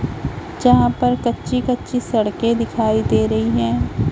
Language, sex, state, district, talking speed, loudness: Hindi, female, Chhattisgarh, Raipur, 130 wpm, -18 LUFS